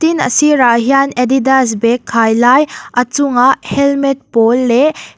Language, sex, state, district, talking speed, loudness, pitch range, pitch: Mizo, female, Mizoram, Aizawl, 160 wpm, -11 LUFS, 240-275 Hz, 260 Hz